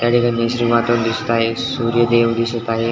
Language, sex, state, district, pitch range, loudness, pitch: Marathi, male, Maharashtra, Dhule, 115-120 Hz, -17 LUFS, 115 Hz